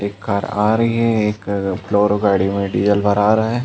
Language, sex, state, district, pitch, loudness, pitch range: Hindi, male, Chhattisgarh, Balrampur, 105 Hz, -17 LUFS, 100-110 Hz